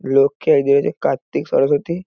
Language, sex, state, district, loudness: Bengali, male, West Bengal, North 24 Parganas, -17 LUFS